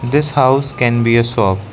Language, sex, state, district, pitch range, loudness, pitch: English, male, Arunachal Pradesh, Lower Dibang Valley, 115-135 Hz, -14 LUFS, 120 Hz